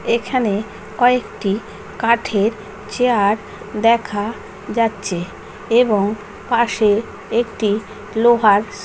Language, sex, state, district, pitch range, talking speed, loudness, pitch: Bengali, female, West Bengal, North 24 Parganas, 205-230 Hz, 75 wpm, -18 LUFS, 210 Hz